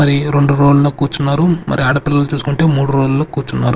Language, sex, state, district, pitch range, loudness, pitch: Telugu, male, Andhra Pradesh, Sri Satya Sai, 140-145 Hz, -14 LUFS, 140 Hz